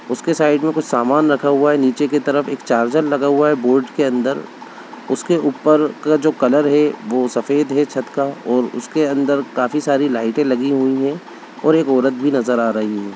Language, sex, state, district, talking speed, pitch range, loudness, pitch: Hindi, male, Bihar, Begusarai, 215 wpm, 130-150 Hz, -17 LUFS, 140 Hz